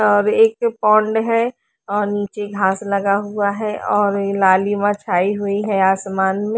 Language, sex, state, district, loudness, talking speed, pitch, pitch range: Hindi, female, Haryana, Rohtak, -18 LUFS, 145 wpm, 205 Hz, 200-215 Hz